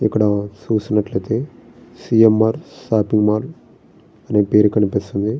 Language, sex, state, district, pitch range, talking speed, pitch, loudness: Telugu, male, Andhra Pradesh, Srikakulam, 105-110 Hz, 110 wpm, 105 Hz, -17 LUFS